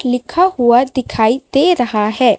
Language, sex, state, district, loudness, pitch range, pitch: Hindi, female, Chhattisgarh, Raipur, -14 LUFS, 235-275 Hz, 245 Hz